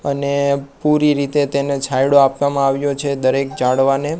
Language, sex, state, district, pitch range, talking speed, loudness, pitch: Gujarati, male, Gujarat, Gandhinagar, 135-140 Hz, 145 wpm, -17 LUFS, 140 Hz